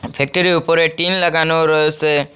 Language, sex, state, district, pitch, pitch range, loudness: Bengali, male, Assam, Hailakandi, 160 Hz, 155-170 Hz, -14 LUFS